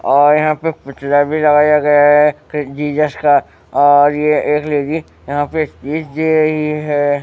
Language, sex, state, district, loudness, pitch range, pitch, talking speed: Hindi, male, Bihar, West Champaran, -14 LUFS, 145-150 Hz, 150 Hz, 155 wpm